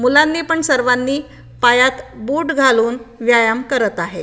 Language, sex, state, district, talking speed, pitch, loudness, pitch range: Marathi, female, Maharashtra, Aurangabad, 125 wpm, 250 Hz, -15 LUFS, 235-275 Hz